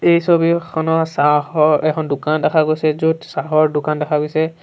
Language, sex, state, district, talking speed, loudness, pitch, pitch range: Assamese, male, Assam, Sonitpur, 155 wpm, -16 LUFS, 155 Hz, 150-160 Hz